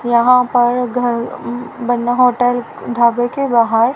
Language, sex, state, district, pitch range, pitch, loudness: Hindi, female, Haryana, Rohtak, 235-245 Hz, 245 Hz, -15 LUFS